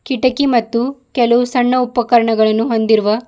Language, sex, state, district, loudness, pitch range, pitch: Kannada, female, Karnataka, Bidar, -14 LUFS, 225-250 Hz, 240 Hz